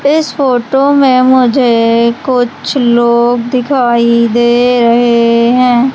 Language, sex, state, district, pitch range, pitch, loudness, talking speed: Hindi, female, Madhya Pradesh, Umaria, 235-260 Hz, 245 Hz, -9 LUFS, 100 wpm